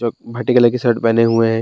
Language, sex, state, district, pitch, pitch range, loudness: Hindi, male, Bihar, Bhagalpur, 115 Hz, 115-120 Hz, -15 LUFS